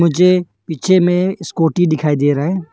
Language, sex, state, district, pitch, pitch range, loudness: Hindi, male, Arunachal Pradesh, Longding, 175 Hz, 160-180 Hz, -15 LUFS